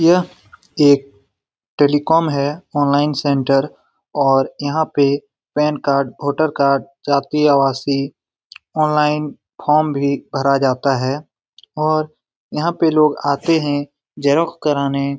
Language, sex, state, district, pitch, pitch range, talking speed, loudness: Hindi, male, Bihar, Lakhisarai, 145 Hz, 140-150 Hz, 115 wpm, -17 LUFS